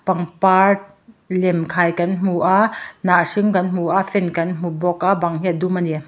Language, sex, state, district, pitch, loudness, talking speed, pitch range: Mizo, male, Mizoram, Aizawl, 185 Hz, -18 LUFS, 195 wpm, 175-195 Hz